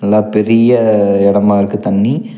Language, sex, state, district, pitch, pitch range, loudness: Tamil, male, Tamil Nadu, Nilgiris, 105 Hz, 100-110 Hz, -11 LUFS